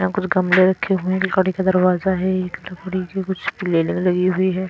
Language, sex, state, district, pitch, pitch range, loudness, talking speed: Hindi, female, Himachal Pradesh, Shimla, 185 Hz, 185-190 Hz, -19 LUFS, 190 wpm